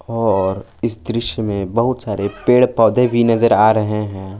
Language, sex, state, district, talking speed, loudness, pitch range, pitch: Hindi, male, Jharkhand, Palamu, 180 wpm, -16 LUFS, 100-115 Hz, 110 Hz